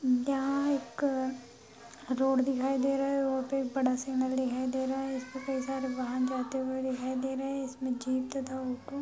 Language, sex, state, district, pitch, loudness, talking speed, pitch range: Hindi, female, Bihar, Madhepura, 260 Hz, -32 LUFS, 205 wpm, 255-270 Hz